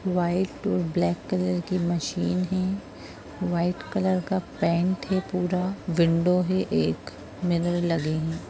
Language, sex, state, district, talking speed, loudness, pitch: Hindi, female, Chhattisgarh, Rajnandgaon, 135 wpm, -26 LUFS, 175 Hz